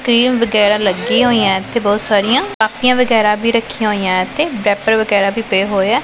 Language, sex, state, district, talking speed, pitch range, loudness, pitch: Punjabi, female, Punjab, Pathankot, 180 wpm, 205-235 Hz, -14 LUFS, 220 Hz